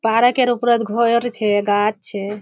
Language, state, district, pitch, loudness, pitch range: Surjapuri, Bihar, Kishanganj, 225 Hz, -17 LUFS, 205-235 Hz